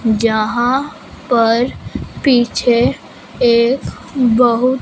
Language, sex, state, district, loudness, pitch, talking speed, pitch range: Hindi, female, Punjab, Fazilka, -15 LUFS, 240 Hz, 60 wpm, 235-255 Hz